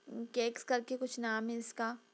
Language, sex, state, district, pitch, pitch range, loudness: Hindi, female, Bihar, Darbhanga, 235 Hz, 230-250 Hz, -37 LUFS